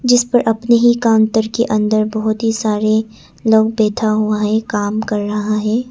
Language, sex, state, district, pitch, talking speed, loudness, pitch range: Hindi, female, Arunachal Pradesh, Papum Pare, 220 Hz, 185 wpm, -15 LUFS, 215-225 Hz